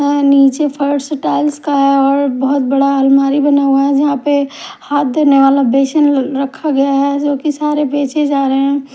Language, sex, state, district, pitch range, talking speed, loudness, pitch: Hindi, female, Himachal Pradesh, Shimla, 275-290 Hz, 180 wpm, -13 LUFS, 280 Hz